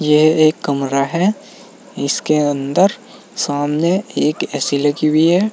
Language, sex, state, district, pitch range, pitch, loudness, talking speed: Hindi, male, Uttar Pradesh, Saharanpur, 145-180 Hz, 155 Hz, -16 LUFS, 130 wpm